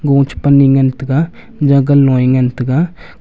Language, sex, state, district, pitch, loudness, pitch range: Wancho, male, Arunachal Pradesh, Longding, 140 Hz, -12 LUFS, 130-145 Hz